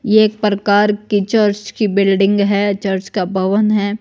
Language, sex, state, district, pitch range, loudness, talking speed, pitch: Hindi, female, Himachal Pradesh, Shimla, 200-210 Hz, -15 LUFS, 180 wpm, 205 Hz